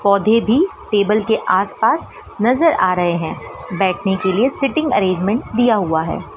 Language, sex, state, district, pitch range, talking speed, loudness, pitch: Hindi, female, Madhya Pradesh, Dhar, 185-235 Hz, 170 wpm, -17 LUFS, 205 Hz